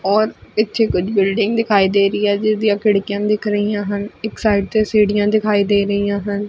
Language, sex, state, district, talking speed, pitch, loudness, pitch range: Punjabi, female, Punjab, Fazilka, 195 wpm, 205 Hz, -17 LUFS, 200-215 Hz